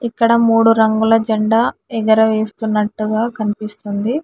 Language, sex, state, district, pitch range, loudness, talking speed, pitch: Telugu, female, Telangana, Hyderabad, 215-225 Hz, -15 LUFS, 85 wpm, 220 Hz